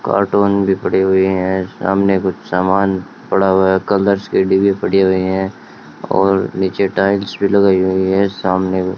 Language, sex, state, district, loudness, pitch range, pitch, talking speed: Hindi, male, Rajasthan, Bikaner, -15 LUFS, 95-100 Hz, 95 Hz, 165 wpm